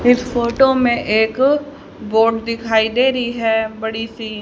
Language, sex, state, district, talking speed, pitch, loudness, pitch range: Hindi, female, Haryana, Charkhi Dadri, 150 wpm, 230 Hz, -17 LUFS, 220-250 Hz